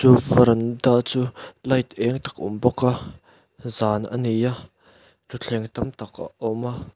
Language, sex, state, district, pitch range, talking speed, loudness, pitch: Mizo, male, Mizoram, Aizawl, 115-125 Hz, 165 wpm, -22 LUFS, 120 Hz